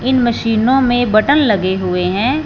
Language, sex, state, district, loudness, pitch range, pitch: Hindi, female, Punjab, Fazilka, -14 LUFS, 205-260 Hz, 235 Hz